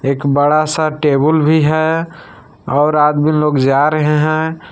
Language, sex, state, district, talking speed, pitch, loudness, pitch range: Hindi, male, Jharkhand, Palamu, 150 wpm, 150 Hz, -13 LUFS, 145-155 Hz